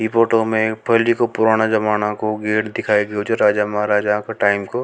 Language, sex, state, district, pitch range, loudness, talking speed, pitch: Rajasthani, male, Rajasthan, Nagaur, 105-110 Hz, -18 LUFS, 225 wpm, 110 Hz